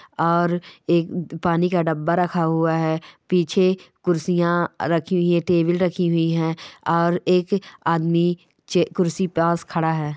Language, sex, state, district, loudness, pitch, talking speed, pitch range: Hindi, female, Chhattisgarh, Balrampur, -21 LUFS, 170 Hz, 140 wpm, 165-180 Hz